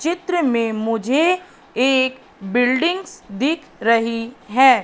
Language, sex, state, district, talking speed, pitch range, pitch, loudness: Hindi, female, Madhya Pradesh, Katni, 100 wpm, 230-320 Hz, 260 Hz, -19 LUFS